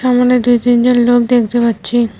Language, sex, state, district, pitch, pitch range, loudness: Bengali, female, West Bengal, Cooch Behar, 240 Hz, 240-245 Hz, -12 LUFS